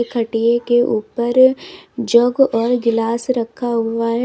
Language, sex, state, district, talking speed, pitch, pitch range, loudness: Hindi, female, Uttar Pradesh, Lalitpur, 125 wpm, 235 Hz, 230-245 Hz, -16 LUFS